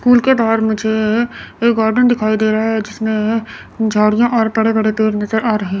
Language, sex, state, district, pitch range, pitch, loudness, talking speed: Hindi, female, Chandigarh, Chandigarh, 215-230 Hz, 220 Hz, -15 LUFS, 195 wpm